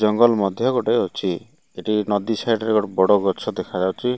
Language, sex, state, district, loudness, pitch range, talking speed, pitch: Odia, male, Odisha, Malkangiri, -20 LUFS, 100-115 Hz, 170 wpm, 105 Hz